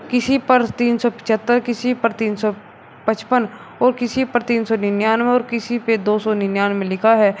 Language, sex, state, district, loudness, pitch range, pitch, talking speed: Hindi, male, Uttar Pradesh, Shamli, -18 LUFS, 215-240 Hz, 230 Hz, 195 wpm